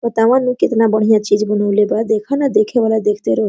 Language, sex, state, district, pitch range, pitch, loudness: Hindi, female, Jharkhand, Sahebganj, 210-235 Hz, 220 Hz, -15 LUFS